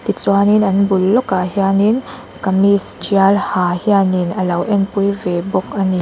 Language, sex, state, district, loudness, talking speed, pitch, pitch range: Mizo, female, Mizoram, Aizawl, -15 LUFS, 170 wpm, 195 Hz, 185-200 Hz